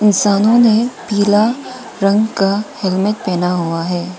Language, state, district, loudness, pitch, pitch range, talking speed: Hindi, Arunachal Pradesh, Papum Pare, -15 LUFS, 205 Hz, 185-220 Hz, 130 wpm